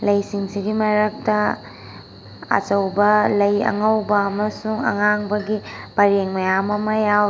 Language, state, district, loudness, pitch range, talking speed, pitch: Manipuri, Manipur, Imphal West, -19 LUFS, 200-210 Hz, 105 wpm, 205 Hz